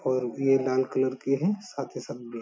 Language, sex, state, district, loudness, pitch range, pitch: Hindi, male, Bihar, Jamui, -27 LUFS, 130-135 Hz, 130 Hz